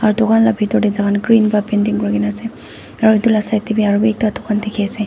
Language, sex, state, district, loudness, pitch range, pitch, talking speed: Nagamese, female, Nagaland, Dimapur, -15 LUFS, 210-220 Hz, 215 Hz, 270 wpm